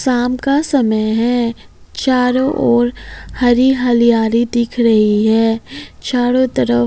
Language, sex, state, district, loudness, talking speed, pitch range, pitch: Hindi, female, Bihar, Kaimur, -14 LUFS, 115 wpm, 225-255 Hz, 240 Hz